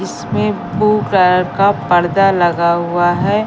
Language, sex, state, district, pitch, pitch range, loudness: Hindi, female, Madhya Pradesh, Katni, 175 Hz, 170-195 Hz, -14 LUFS